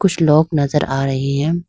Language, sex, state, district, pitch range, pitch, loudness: Hindi, female, Arunachal Pradesh, Lower Dibang Valley, 140-165 Hz, 150 Hz, -16 LUFS